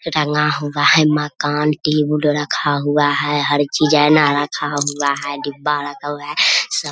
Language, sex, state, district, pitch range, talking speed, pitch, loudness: Hindi, female, Bihar, Samastipur, 145-150 Hz, 175 wpm, 145 Hz, -16 LUFS